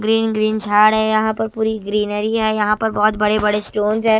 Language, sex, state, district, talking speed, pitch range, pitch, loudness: Hindi, female, Himachal Pradesh, Shimla, 230 wpm, 210-220 Hz, 215 Hz, -17 LUFS